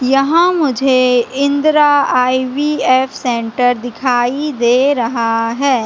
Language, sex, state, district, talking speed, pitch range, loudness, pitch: Hindi, female, Madhya Pradesh, Katni, 90 wpm, 245-285 Hz, -13 LUFS, 255 Hz